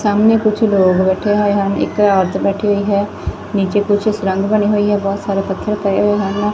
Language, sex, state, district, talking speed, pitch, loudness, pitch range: Punjabi, female, Punjab, Fazilka, 220 wpm, 205 Hz, -15 LUFS, 195-210 Hz